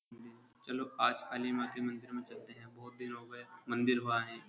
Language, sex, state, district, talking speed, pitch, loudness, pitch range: Hindi, male, Uttar Pradesh, Jyotiba Phule Nagar, 215 wpm, 120 Hz, -37 LUFS, 120-125 Hz